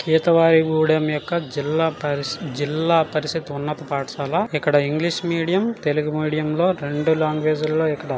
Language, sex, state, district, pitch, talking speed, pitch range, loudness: Telugu, male, Telangana, Nalgonda, 155 Hz, 125 wpm, 150-165 Hz, -21 LUFS